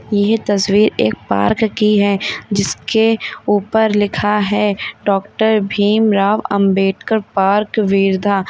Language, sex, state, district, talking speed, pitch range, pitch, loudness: Hindi, female, Uttar Pradesh, Lalitpur, 105 wpm, 195-215 Hz, 205 Hz, -15 LUFS